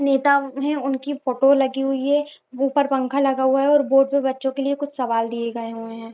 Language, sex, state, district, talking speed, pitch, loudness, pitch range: Hindi, female, Jharkhand, Jamtara, 235 wpm, 270 Hz, -21 LUFS, 260-280 Hz